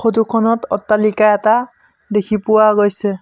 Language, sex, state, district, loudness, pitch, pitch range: Assamese, male, Assam, Sonitpur, -14 LUFS, 215 Hz, 210-225 Hz